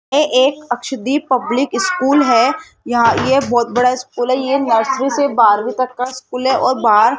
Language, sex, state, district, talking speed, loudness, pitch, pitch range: Hindi, female, Rajasthan, Jaipur, 190 wpm, -15 LUFS, 260 Hz, 245-275 Hz